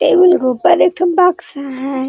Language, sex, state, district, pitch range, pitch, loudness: Hindi, female, Jharkhand, Sahebganj, 265-360 Hz, 340 Hz, -13 LUFS